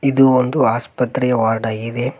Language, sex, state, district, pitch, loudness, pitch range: Kannada, male, Karnataka, Koppal, 125 Hz, -17 LUFS, 115-130 Hz